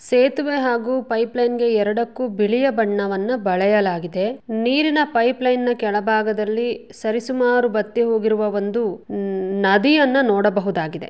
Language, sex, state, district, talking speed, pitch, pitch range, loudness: Kannada, female, Karnataka, Shimoga, 115 wpm, 225 Hz, 205-250 Hz, -19 LUFS